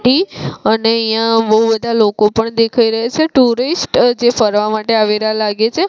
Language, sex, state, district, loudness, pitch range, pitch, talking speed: Gujarati, female, Gujarat, Gandhinagar, -13 LUFS, 220-240 Hz, 225 Hz, 155 wpm